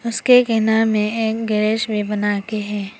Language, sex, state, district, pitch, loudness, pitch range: Hindi, female, Arunachal Pradesh, Papum Pare, 220 Hz, -18 LUFS, 210-225 Hz